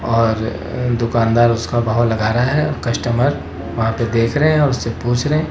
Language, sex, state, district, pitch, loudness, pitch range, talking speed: Hindi, male, Rajasthan, Jaipur, 120 Hz, -17 LUFS, 115-125 Hz, 185 wpm